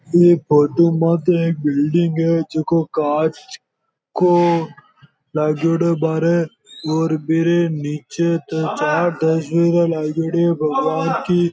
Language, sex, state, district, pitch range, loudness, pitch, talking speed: Marwari, male, Rajasthan, Nagaur, 155-170 Hz, -18 LUFS, 165 Hz, 110 wpm